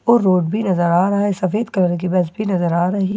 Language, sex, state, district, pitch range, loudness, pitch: Hindi, female, Bihar, Katihar, 180-205 Hz, -17 LUFS, 185 Hz